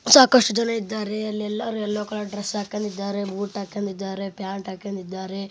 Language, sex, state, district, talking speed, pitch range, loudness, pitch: Kannada, male, Karnataka, Bellary, 130 wpm, 195-215 Hz, -24 LUFS, 205 Hz